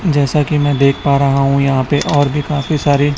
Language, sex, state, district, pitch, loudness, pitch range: Hindi, male, Chhattisgarh, Raipur, 145 Hz, -14 LUFS, 140-145 Hz